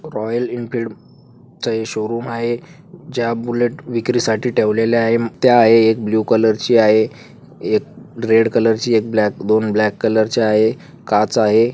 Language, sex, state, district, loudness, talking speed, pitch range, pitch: Marathi, female, Maharashtra, Chandrapur, -16 LUFS, 160 wpm, 110-120 Hz, 115 Hz